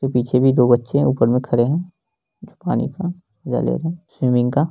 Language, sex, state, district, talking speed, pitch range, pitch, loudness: Hindi, male, Bihar, Lakhisarai, 240 wpm, 125-170 Hz, 135 Hz, -19 LUFS